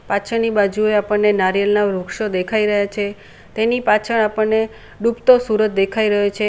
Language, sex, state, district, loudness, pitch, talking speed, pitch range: Gujarati, female, Gujarat, Valsad, -17 LUFS, 210 Hz, 150 wpm, 205-220 Hz